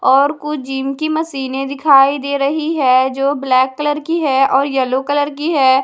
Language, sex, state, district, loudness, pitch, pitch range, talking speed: Hindi, female, Haryana, Charkhi Dadri, -15 LUFS, 275 Hz, 265-295 Hz, 195 wpm